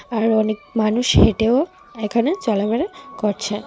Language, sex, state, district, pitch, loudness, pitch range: Bengali, female, Tripura, West Tripura, 225 Hz, -19 LUFS, 215-275 Hz